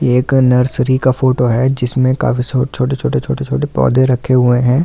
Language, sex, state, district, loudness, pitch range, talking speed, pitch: Hindi, male, Delhi, New Delhi, -14 LUFS, 125-130 Hz, 160 wpm, 130 Hz